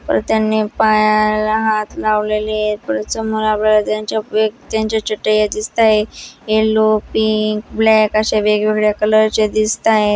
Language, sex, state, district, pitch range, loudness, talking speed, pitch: Marathi, female, Maharashtra, Dhule, 215-220 Hz, -15 LUFS, 95 wpm, 215 Hz